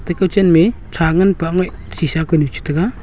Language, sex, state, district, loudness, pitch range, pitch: Wancho, male, Arunachal Pradesh, Longding, -16 LUFS, 160-185 Hz, 170 Hz